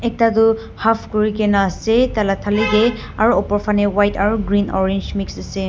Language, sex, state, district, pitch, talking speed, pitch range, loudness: Nagamese, female, Nagaland, Dimapur, 210 Hz, 180 wpm, 200-225 Hz, -17 LUFS